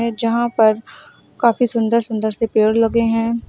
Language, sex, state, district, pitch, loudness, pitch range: Hindi, female, Uttar Pradesh, Lucknow, 230 Hz, -17 LUFS, 220-235 Hz